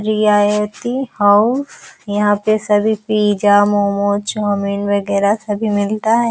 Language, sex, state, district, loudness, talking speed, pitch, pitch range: Hindi, female, Bihar, Araria, -15 LUFS, 115 wpm, 210 Hz, 205-215 Hz